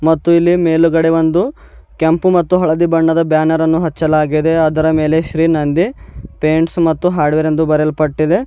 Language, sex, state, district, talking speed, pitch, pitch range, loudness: Kannada, male, Karnataka, Bidar, 140 wpm, 160 Hz, 155-170 Hz, -13 LUFS